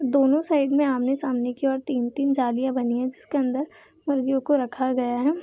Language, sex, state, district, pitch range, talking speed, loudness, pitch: Hindi, female, Bihar, Madhepura, 255-280 Hz, 190 wpm, -24 LUFS, 265 Hz